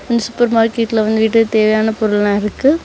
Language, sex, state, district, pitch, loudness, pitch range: Tamil, female, Tamil Nadu, Kanyakumari, 220 Hz, -14 LUFS, 215-230 Hz